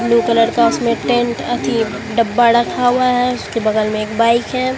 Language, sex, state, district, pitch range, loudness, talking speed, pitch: Hindi, female, Bihar, Katihar, 230-245 Hz, -15 LUFS, 200 wpm, 235 Hz